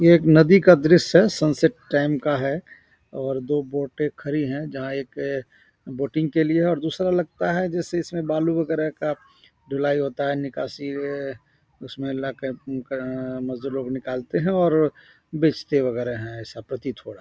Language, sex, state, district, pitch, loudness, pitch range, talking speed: Hindi, male, Bihar, Samastipur, 145 Hz, -22 LUFS, 135-160 Hz, 185 wpm